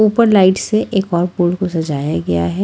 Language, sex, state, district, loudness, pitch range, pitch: Hindi, female, Haryana, Rohtak, -15 LUFS, 145-195 Hz, 175 Hz